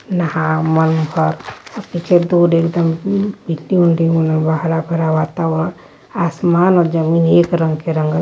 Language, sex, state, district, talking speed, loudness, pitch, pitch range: Hindi, male, Uttar Pradesh, Varanasi, 145 wpm, -15 LUFS, 165 Hz, 160-175 Hz